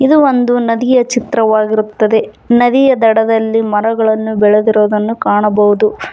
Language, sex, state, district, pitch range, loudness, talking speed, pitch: Kannada, female, Karnataka, Bangalore, 215-245 Hz, -11 LUFS, 90 wpm, 220 Hz